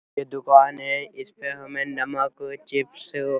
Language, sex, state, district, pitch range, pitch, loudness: Hindi, male, Uttar Pradesh, Muzaffarnagar, 135-140 Hz, 140 Hz, -23 LUFS